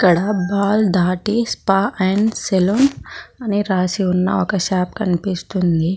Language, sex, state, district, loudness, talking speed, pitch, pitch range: Telugu, female, Telangana, Mahabubabad, -18 LUFS, 120 wpm, 190 Hz, 185-210 Hz